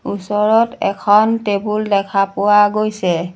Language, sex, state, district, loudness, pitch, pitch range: Assamese, female, Assam, Sonitpur, -15 LUFS, 205 Hz, 200-215 Hz